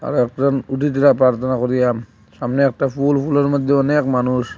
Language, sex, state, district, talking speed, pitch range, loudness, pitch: Bengali, male, Assam, Hailakandi, 145 wpm, 125-140 Hz, -17 LUFS, 135 Hz